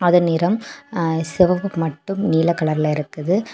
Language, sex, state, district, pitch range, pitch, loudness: Tamil, female, Tamil Nadu, Kanyakumari, 160-190 Hz, 170 Hz, -20 LUFS